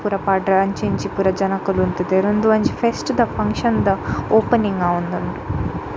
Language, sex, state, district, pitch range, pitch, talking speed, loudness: Tulu, female, Karnataka, Dakshina Kannada, 190-210 Hz, 195 Hz, 160 wpm, -19 LUFS